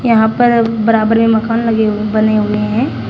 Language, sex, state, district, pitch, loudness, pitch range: Hindi, female, Uttar Pradesh, Shamli, 225 Hz, -13 LUFS, 215-230 Hz